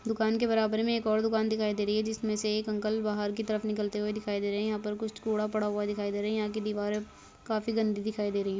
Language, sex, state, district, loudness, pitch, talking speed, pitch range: Hindi, female, Uttar Pradesh, Varanasi, -31 LUFS, 215 Hz, 300 wpm, 210-220 Hz